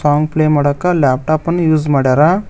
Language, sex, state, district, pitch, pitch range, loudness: Kannada, male, Karnataka, Koppal, 155 Hz, 145-160 Hz, -13 LUFS